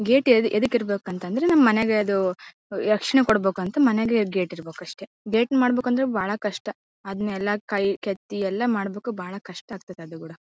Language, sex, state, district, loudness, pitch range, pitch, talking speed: Kannada, female, Karnataka, Bellary, -23 LUFS, 195-230 Hz, 205 Hz, 170 wpm